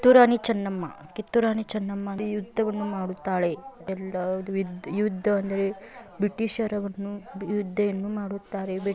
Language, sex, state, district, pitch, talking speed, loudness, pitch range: Kannada, female, Karnataka, Belgaum, 200 Hz, 115 wpm, -27 LUFS, 195-210 Hz